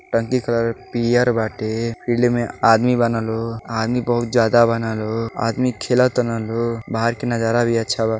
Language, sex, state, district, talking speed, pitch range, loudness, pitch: Bhojpuri, male, Uttar Pradesh, Deoria, 170 wpm, 115-120 Hz, -19 LUFS, 115 Hz